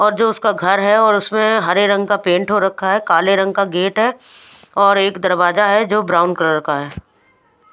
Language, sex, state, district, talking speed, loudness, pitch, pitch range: Hindi, female, Punjab, Fazilka, 215 wpm, -15 LUFS, 200 Hz, 185-215 Hz